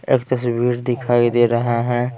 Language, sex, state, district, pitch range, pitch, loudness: Hindi, male, Bihar, Patna, 120-125 Hz, 120 Hz, -18 LUFS